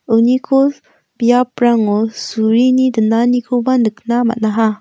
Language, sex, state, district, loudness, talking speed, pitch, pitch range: Garo, female, Meghalaya, West Garo Hills, -14 LUFS, 75 wpm, 235 Hz, 225-250 Hz